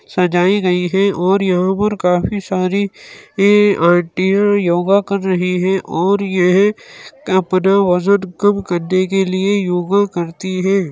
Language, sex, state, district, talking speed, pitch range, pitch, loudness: Hindi, male, Uttar Pradesh, Muzaffarnagar, 150 wpm, 180-200 Hz, 190 Hz, -15 LUFS